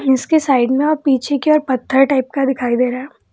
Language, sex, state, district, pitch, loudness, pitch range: Hindi, female, Bihar, Jamui, 270 Hz, -15 LUFS, 255-290 Hz